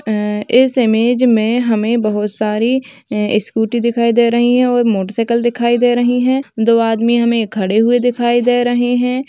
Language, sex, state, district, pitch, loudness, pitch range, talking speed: Hindi, female, Uttar Pradesh, Hamirpur, 235 Hz, -14 LUFS, 220-245 Hz, 170 wpm